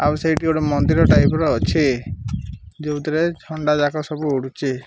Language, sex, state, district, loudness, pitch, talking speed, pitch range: Odia, male, Odisha, Malkangiri, -19 LUFS, 150 Hz, 135 wpm, 135-155 Hz